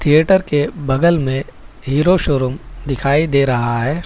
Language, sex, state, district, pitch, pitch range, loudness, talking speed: Hindi, male, Telangana, Hyderabad, 145 Hz, 135-155 Hz, -16 LUFS, 145 wpm